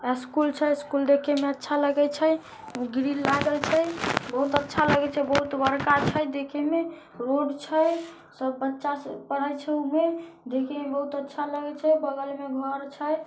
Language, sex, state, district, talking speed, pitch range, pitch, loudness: Magahi, male, Bihar, Samastipur, 170 wpm, 280-300 Hz, 285 Hz, -26 LUFS